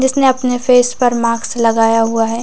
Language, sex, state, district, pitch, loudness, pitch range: Hindi, female, Chhattisgarh, Raigarh, 245 Hz, -13 LUFS, 230-250 Hz